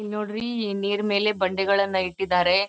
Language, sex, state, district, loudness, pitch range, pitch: Kannada, female, Karnataka, Dharwad, -24 LUFS, 190-210 Hz, 200 Hz